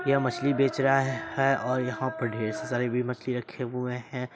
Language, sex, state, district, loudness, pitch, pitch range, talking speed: Hindi, male, Bihar, Saharsa, -28 LUFS, 125 Hz, 125-135 Hz, 205 wpm